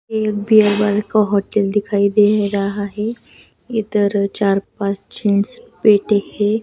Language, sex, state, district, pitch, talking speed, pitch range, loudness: Hindi, female, Bihar, West Champaran, 205 Hz, 145 wpm, 200-215 Hz, -17 LUFS